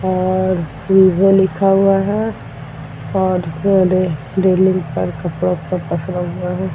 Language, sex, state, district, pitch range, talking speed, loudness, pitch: Hindi, female, Bihar, Vaishali, 170-190 Hz, 125 wpm, -16 LUFS, 185 Hz